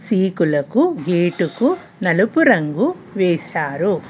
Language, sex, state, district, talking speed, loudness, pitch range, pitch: Telugu, female, Telangana, Hyderabad, 75 wpm, -18 LUFS, 175-260 Hz, 190 Hz